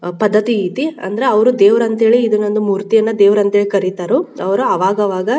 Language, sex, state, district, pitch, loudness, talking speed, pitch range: Kannada, female, Karnataka, Bijapur, 210 Hz, -14 LUFS, 210 wpm, 200-225 Hz